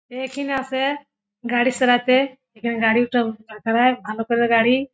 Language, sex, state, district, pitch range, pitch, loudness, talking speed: Bengali, female, West Bengal, Jhargram, 230-260 Hz, 245 Hz, -20 LUFS, 135 wpm